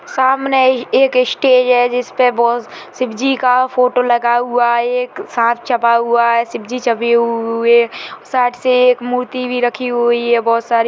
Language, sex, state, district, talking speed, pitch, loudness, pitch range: Hindi, female, Chhattisgarh, Raigarh, 175 wpm, 245 Hz, -14 LUFS, 235-255 Hz